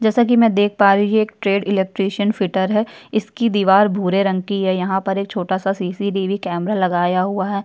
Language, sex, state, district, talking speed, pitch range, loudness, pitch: Hindi, female, Uttar Pradesh, Jyotiba Phule Nagar, 225 wpm, 190-205 Hz, -18 LUFS, 195 Hz